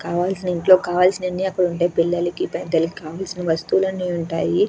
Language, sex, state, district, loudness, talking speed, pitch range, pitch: Telugu, female, Andhra Pradesh, Krishna, -20 LUFS, 165 wpm, 170-185 Hz, 180 Hz